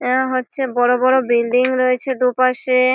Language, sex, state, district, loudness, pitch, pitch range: Bengali, female, West Bengal, Malda, -17 LUFS, 255 Hz, 250-260 Hz